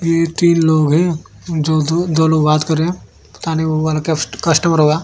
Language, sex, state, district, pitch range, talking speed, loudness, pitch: Hindi, male, Odisha, Malkangiri, 155-165 Hz, 165 wpm, -15 LUFS, 160 Hz